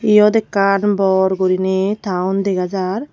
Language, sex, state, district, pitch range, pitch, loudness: Chakma, female, Tripura, Unakoti, 190-205 Hz, 195 Hz, -16 LUFS